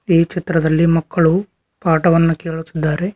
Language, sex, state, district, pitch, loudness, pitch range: Kannada, male, Karnataka, Koppal, 165 Hz, -16 LUFS, 160-175 Hz